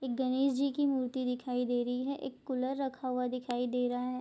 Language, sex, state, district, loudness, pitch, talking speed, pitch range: Hindi, female, Bihar, Bhagalpur, -33 LUFS, 255 Hz, 240 wpm, 250-270 Hz